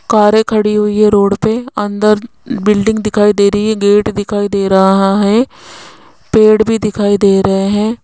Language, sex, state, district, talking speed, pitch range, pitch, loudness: Hindi, female, Rajasthan, Jaipur, 170 wpm, 205-220 Hz, 210 Hz, -11 LUFS